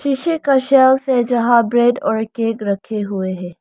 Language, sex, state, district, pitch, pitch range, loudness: Hindi, female, Arunachal Pradesh, Lower Dibang Valley, 240 Hz, 215-265 Hz, -16 LUFS